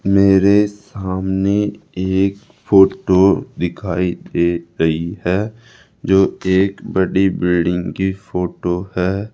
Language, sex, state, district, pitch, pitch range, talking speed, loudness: Hindi, male, Rajasthan, Jaipur, 95 Hz, 90-100 Hz, 95 wpm, -17 LUFS